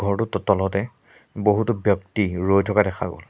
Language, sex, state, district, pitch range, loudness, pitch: Assamese, male, Assam, Sonitpur, 95-105 Hz, -22 LUFS, 100 Hz